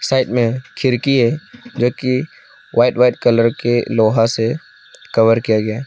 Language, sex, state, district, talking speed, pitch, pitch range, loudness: Hindi, male, Arunachal Pradesh, Lower Dibang Valley, 165 wpm, 120 Hz, 115-130 Hz, -16 LUFS